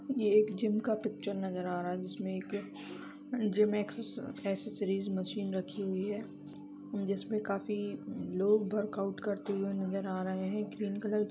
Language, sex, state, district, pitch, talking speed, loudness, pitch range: Hindi, female, Chhattisgarh, Raigarh, 205 Hz, 165 wpm, -35 LUFS, 195-215 Hz